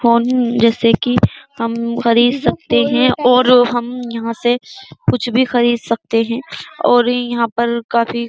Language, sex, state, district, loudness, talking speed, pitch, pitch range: Hindi, female, Uttar Pradesh, Jyotiba Phule Nagar, -15 LUFS, 150 wpm, 235 Hz, 235-245 Hz